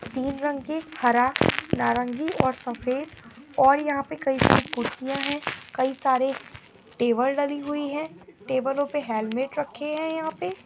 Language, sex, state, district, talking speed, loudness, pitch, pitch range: Angika, female, Bihar, Madhepura, 160 wpm, -25 LUFS, 275 Hz, 255-295 Hz